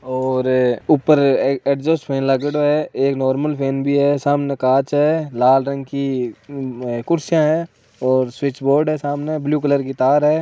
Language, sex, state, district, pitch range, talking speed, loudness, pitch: Hindi, male, Rajasthan, Nagaur, 130-150 Hz, 175 wpm, -18 LUFS, 140 Hz